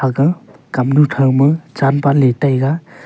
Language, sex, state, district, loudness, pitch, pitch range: Wancho, male, Arunachal Pradesh, Longding, -14 LUFS, 140 Hz, 135-150 Hz